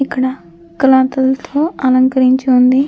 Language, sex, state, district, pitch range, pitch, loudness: Telugu, female, Andhra Pradesh, Krishna, 255-270 Hz, 260 Hz, -13 LUFS